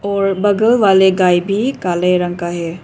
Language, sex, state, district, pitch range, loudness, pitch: Hindi, female, Arunachal Pradesh, Papum Pare, 175-200 Hz, -14 LUFS, 190 Hz